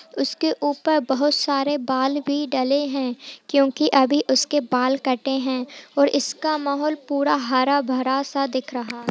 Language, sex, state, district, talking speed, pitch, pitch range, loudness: Hindi, female, Bihar, Purnia, 150 wpm, 275 Hz, 260-290 Hz, -21 LUFS